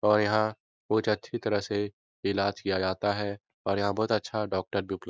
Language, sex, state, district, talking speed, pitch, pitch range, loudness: Hindi, male, Bihar, Jahanabad, 210 wpm, 100 Hz, 100-105 Hz, -29 LUFS